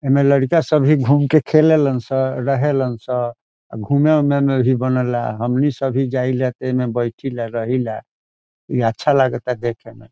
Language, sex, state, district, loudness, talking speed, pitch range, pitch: Bhojpuri, male, Bihar, Saran, -18 LUFS, 160 wpm, 120-140 Hz, 130 Hz